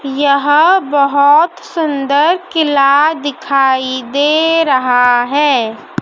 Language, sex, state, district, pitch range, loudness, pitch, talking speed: Hindi, female, Madhya Pradesh, Dhar, 270-315 Hz, -12 LUFS, 285 Hz, 80 wpm